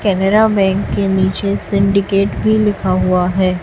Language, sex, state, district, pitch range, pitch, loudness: Hindi, female, Chhattisgarh, Raipur, 190-200 Hz, 195 Hz, -14 LUFS